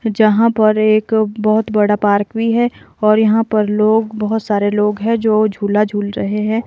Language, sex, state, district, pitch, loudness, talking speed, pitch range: Hindi, female, Himachal Pradesh, Shimla, 215 Hz, -15 LUFS, 190 wpm, 210-220 Hz